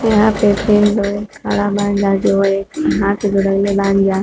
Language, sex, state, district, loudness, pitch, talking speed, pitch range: Bhojpuri, female, Uttar Pradesh, Varanasi, -15 LUFS, 200 Hz, 140 wpm, 195-210 Hz